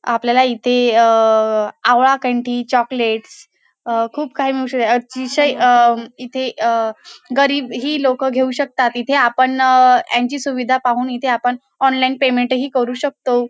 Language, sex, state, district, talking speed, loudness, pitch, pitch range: Marathi, female, Maharashtra, Dhule, 140 wpm, -16 LUFS, 250 Hz, 240-260 Hz